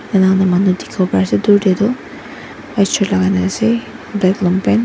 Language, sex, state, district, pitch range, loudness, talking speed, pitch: Nagamese, female, Nagaland, Dimapur, 180-205 Hz, -15 LUFS, 175 wpm, 190 Hz